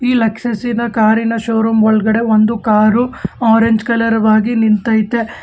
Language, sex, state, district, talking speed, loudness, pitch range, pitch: Kannada, male, Karnataka, Bangalore, 135 wpm, -13 LUFS, 220-230 Hz, 225 Hz